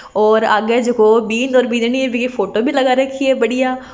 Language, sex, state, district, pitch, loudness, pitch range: Marwari, female, Rajasthan, Nagaur, 245 Hz, -15 LUFS, 220-260 Hz